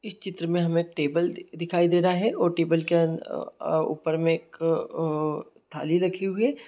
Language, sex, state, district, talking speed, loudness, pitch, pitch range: Hindi, male, Jharkhand, Sahebganj, 180 wpm, -26 LUFS, 170 Hz, 160-180 Hz